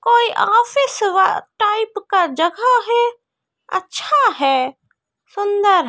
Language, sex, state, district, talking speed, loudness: Hindi, female, Bihar, Kishanganj, 100 wpm, -17 LUFS